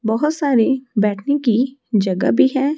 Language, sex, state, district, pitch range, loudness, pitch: Hindi, female, Odisha, Malkangiri, 220-280 Hz, -18 LUFS, 245 Hz